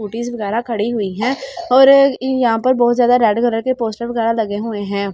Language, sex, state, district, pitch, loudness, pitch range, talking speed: Hindi, female, Delhi, New Delhi, 235 Hz, -16 LUFS, 220-255 Hz, 220 wpm